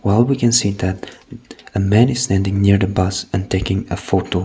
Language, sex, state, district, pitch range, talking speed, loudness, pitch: English, male, Nagaland, Kohima, 95-105 Hz, 215 wpm, -17 LUFS, 95 Hz